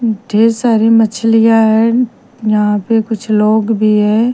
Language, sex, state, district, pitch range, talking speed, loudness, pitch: Hindi, female, Bihar, Patna, 215-225 Hz, 150 wpm, -12 LUFS, 225 Hz